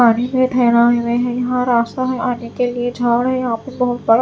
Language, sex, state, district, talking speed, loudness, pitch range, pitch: Hindi, female, Chhattisgarh, Raipur, 240 wpm, -17 LUFS, 235-250 Hz, 245 Hz